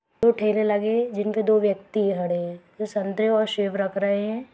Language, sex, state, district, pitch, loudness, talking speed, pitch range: Hindi, female, Bihar, Begusarai, 210 Hz, -23 LUFS, 210 wpm, 195-215 Hz